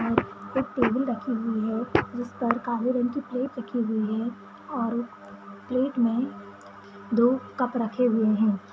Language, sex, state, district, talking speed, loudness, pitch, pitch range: Kumaoni, male, Uttarakhand, Tehri Garhwal, 150 wpm, -27 LUFS, 235 Hz, 220-250 Hz